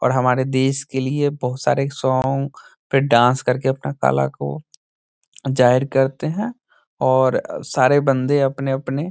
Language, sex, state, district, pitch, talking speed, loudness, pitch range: Hindi, male, Bihar, Saran, 135 Hz, 150 wpm, -19 LUFS, 125-140 Hz